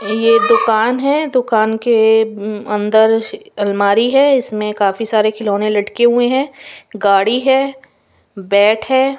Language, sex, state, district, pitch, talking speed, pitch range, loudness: Hindi, female, Bihar, West Champaran, 220 Hz, 125 wpm, 210-250 Hz, -14 LUFS